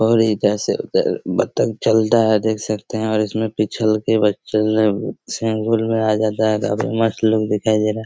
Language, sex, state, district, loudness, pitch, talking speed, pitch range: Hindi, male, Bihar, Araria, -18 LUFS, 110 Hz, 200 wpm, 105-110 Hz